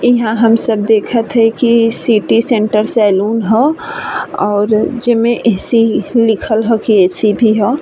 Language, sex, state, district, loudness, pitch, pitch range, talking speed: Bhojpuri, female, Uttar Pradesh, Ghazipur, -12 LUFS, 225 Hz, 215-235 Hz, 160 wpm